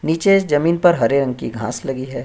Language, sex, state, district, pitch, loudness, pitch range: Hindi, male, Bihar, Bhagalpur, 140 Hz, -17 LUFS, 125-170 Hz